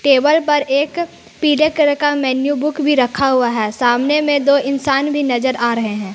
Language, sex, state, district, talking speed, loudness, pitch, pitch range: Hindi, female, Jharkhand, Palamu, 205 wpm, -15 LUFS, 280 Hz, 255-295 Hz